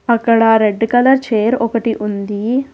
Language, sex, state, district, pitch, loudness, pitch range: Telugu, female, Telangana, Hyderabad, 230 Hz, -14 LUFS, 220-240 Hz